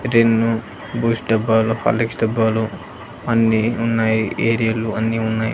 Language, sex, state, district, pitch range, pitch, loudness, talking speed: Telugu, male, Andhra Pradesh, Annamaya, 110-115 Hz, 115 Hz, -19 LUFS, 110 wpm